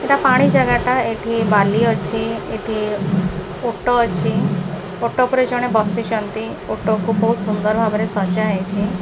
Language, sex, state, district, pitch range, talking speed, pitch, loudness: Odia, female, Odisha, Khordha, 200-230 Hz, 140 wpm, 215 Hz, -18 LUFS